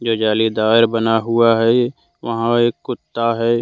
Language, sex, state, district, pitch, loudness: Hindi, male, Jharkhand, Deoghar, 115 Hz, -16 LUFS